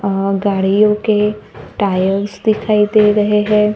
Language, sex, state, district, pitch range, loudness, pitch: Hindi, female, Maharashtra, Gondia, 200-210 Hz, -14 LUFS, 210 Hz